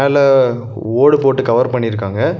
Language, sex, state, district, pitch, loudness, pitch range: Tamil, male, Tamil Nadu, Nilgiris, 125 Hz, -14 LUFS, 115-135 Hz